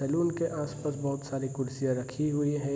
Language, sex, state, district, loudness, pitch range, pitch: Hindi, male, Bihar, Saharsa, -31 LUFS, 135-150 Hz, 140 Hz